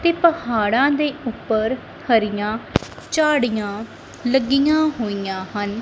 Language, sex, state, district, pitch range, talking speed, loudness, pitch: Punjabi, female, Punjab, Kapurthala, 215-290 Hz, 95 wpm, -20 LUFS, 235 Hz